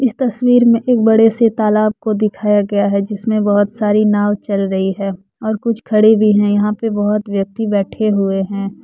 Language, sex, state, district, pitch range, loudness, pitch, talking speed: Hindi, female, Jharkhand, Deoghar, 200-220 Hz, -15 LUFS, 210 Hz, 205 wpm